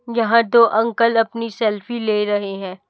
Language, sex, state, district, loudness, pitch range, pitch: Hindi, female, Chhattisgarh, Raipur, -18 LUFS, 210-230 Hz, 230 Hz